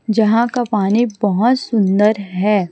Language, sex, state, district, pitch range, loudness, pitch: Hindi, female, Chhattisgarh, Raipur, 205-235 Hz, -16 LUFS, 215 Hz